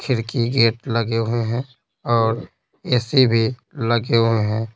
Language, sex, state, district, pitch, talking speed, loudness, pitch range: Hindi, male, Bihar, Patna, 115 Hz, 140 wpm, -20 LUFS, 115-125 Hz